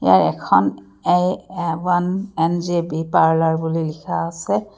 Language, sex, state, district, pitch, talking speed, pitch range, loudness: Assamese, female, Assam, Kamrup Metropolitan, 165 Hz, 100 wpm, 160-180 Hz, -19 LUFS